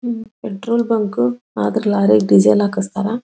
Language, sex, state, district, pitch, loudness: Kannada, female, Karnataka, Belgaum, 205 Hz, -16 LUFS